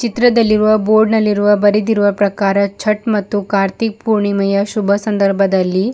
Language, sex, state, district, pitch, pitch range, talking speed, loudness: Kannada, female, Karnataka, Bidar, 205 Hz, 200-215 Hz, 130 wpm, -14 LUFS